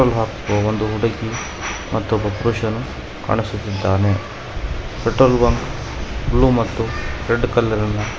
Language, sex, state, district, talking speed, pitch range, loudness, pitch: Kannada, male, Karnataka, Bangalore, 95 wpm, 105-115 Hz, -20 LUFS, 110 Hz